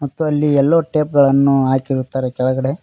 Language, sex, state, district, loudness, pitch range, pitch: Kannada, male, Karnataka, Koppal, -16 LUFS, 130-145 Hz, 140 Hz